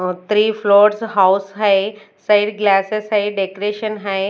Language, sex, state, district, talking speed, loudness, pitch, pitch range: Hindi, female, Chhattisgarh, Raipur, 125 wpm, -16 LUFS, 205 Hz, 195-210 Hz